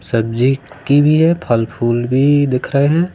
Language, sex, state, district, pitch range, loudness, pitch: Hindi, male, Madhya Pradesh, Katni, 120-145 Hz, -15 LUFS, 135 Hz